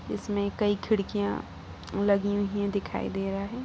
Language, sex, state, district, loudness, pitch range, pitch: Hindi, female, Bihar, Saran, -29 LUFS, 200-205 Hz, 200 Hz